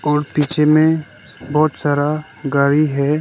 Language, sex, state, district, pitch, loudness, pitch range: Hindi, male, Arunachal Pradesh, Lower Dibang Valley, 150 Hz, -17 LUFS, 145-155 Hz